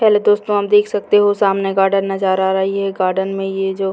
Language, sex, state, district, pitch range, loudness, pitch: Hindi, female, Bihar, Purnia, 195-205 Hz, -16 LUFS, 195 Hz